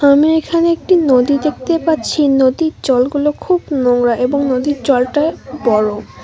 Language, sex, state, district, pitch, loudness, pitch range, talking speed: Bengali, female, West Bengal, Alipurduar, 285 Hz, -14 LUFS, 255-315 Hz, 135 wpm